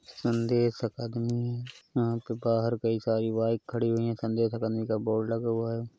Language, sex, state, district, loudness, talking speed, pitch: Hindi, male, Uttar Pradesh, Hamirpur, -29 LUFS, 190 wpm, 115 Hz